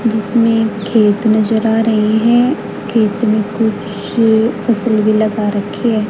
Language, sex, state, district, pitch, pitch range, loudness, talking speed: Hindi, female, Haryana, Rohtak, 220 Hz, 215-230 Hz, -14 LUFS, 130 wpm